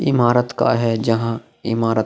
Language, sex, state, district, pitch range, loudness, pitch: Hindi, male, Uttar Pradesh, Jalaun, 115-120 Hz, -19 LUFS, 115 Hz